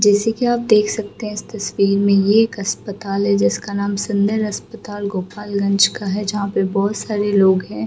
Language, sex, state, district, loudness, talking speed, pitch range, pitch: Hindi, female, Bihar, Gaya, -18 LUFS, 200 wpm, 195-210 Hz, 200 Hz